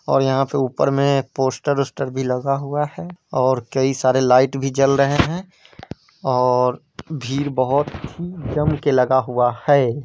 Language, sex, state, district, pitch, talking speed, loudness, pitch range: Hindi, male, Bihar, East Champaran, 135 Hz, 165 wpm, -19 LUFS, 130-145 Hz